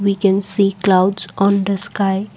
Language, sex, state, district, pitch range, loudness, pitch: English, female, Assam, Kamrup Metropolitan, 190-200 Hz, -15 LUFS, 195 Hz